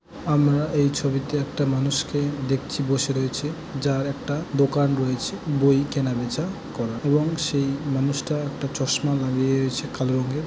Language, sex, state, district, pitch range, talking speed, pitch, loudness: Bengali, male, West Bengal, Jalpaiguri, 135-145 Hz, 145 wpm, 140 Hz, -24 LUFS